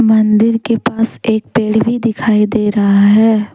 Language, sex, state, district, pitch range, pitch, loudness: Hindi, female, Jharkhand, Deoghar, 210-230 Hz, 220 Hz, -12 LUFS